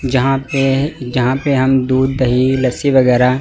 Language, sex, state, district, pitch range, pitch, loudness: Hindi, male, Chandigarh, Chandigarh, 130-135 Hz, 130 Hz, -14 LUFS